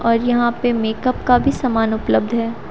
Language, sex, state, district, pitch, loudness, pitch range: Hindi, female, Haryana, Rohtak, 235 Hz, -18 LUFS, 225-245 Hz